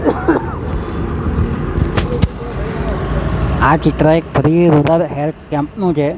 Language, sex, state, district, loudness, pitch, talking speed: Gujarati, male, Gujarat, Gandhinagar, -16 LUFS, 145 Hz, 70 wpm